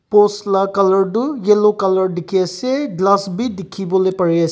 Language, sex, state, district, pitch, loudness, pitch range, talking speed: Nagamese, male, Nagaland, Kohima, 195 Hz, -16 LUFS, 190-210 Hz, 145 wpm